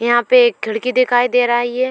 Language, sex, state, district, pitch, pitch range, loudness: Hindi, female, Uttar Pradesh, Etah, 245 Hz, 240-255 Hz, -15 LUFS